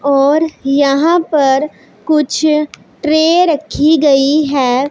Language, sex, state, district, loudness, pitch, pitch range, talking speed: Hindi, female, Punjab, Pathankot, -12 LUFS, 300 Hz, 275-315 Hz, 100 wpm